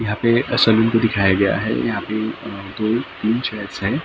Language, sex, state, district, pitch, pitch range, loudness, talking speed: Hindi, male, Maharashtra, Mumbai Suburban, 110 Hz, 100-115 Hz, -19 LUFS, 250 wpm